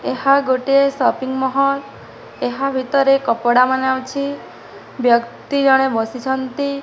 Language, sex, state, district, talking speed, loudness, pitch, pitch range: Odia, female, Odisha, Nuapada, 105 wpm, -17 LUFS, 265 Hz, 255-275 Hz